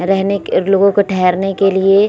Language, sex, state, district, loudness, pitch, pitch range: Hindi, female, Bihar, Vaishali, -13 LUFS, 195 Hz, 190-200 Hz